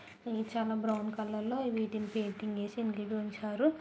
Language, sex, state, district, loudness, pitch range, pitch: Telugu, female, Andhra Pradesh, Guntur, -35 LUFS, 215-225 Hz, 220 Hz